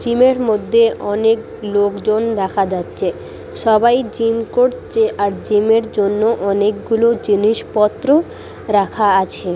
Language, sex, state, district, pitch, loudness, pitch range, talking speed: Bengali, female, West Bengal, Purulia, 215 Hz, -16 LUFS, 205-230 Hz, 115 wpm